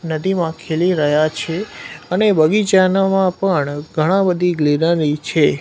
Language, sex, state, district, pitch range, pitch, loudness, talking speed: Gujarati, male, Gujarat, Gandhinagar, 155-190 Hz, 170 Hz, -16 LUFS, 130 wpm